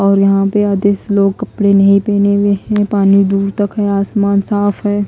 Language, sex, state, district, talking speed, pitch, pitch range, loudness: Hindi, female, Haryana, Jhajjar, 200 wpm, 200 Hz, 195-205 Hz, -13 LUFS